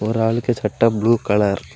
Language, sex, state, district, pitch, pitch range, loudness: Tamil, male, Tamil Nadu, Kanyakumari, 110 Hz, 105-115 Hz, -18 LUFS